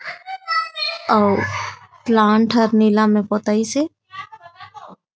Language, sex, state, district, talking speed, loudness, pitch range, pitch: Chhattisgarhi, female, Chhattisgarh, Raigarh, 80 wpm, -18 LUFS, 215-340 Hz, 275 Hz